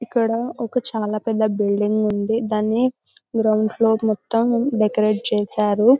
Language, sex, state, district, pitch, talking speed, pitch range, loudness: Telugu, male, Telangana, Karimnagar, 220 Hz, 120 wpm, 215-230 Hz, -20 LUFS